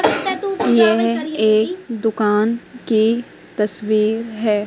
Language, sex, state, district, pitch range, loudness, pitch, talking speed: Hindi, female, Madhya Pradesh, Katni, 215-235 Hz, -18 LUFS, 225 Hz, 75 wpm